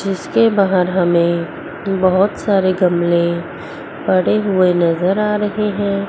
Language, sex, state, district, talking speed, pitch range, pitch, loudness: Hindi, female, Chandigarh, Chandigarh, 120 wpm, 175-200 Hz, 185 Hz, -16 LUFS